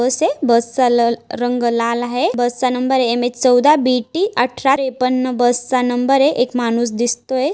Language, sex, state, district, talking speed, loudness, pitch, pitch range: Marathi, female, Maharashtra, Dhule, 150 wpm, -16 LUFS, 250 Hz, 240-260 Hz